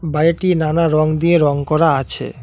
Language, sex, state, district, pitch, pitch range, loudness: Bengali, male, West Bengal, Alipurduar, 160 Hz, 155-165 Hz, -15 LUFS